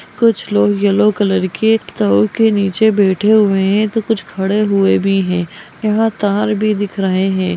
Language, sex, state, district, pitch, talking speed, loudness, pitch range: Magahi, female, Bihar, Gaya, 205 Hz, 190 wpm, -14 LUFS, 190-215 Hz